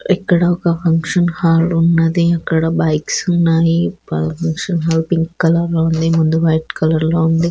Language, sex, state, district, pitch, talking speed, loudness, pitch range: Telugu, female, Andhra Pradesh, Guntur, 165 Hz, 150 wpm, -15 LUFS, 160-170 Hz